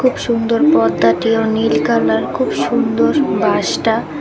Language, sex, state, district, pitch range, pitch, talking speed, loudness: Bengali, female, Tripura, West Tripura, 150-230 Hz, 225 Hz, 140 wpm, -15 LUFS